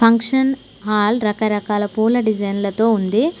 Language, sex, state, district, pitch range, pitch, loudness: Telugu, female, Telangana, Mahabubabad, 210-230 Hz, 220 Hz, -18 LUFS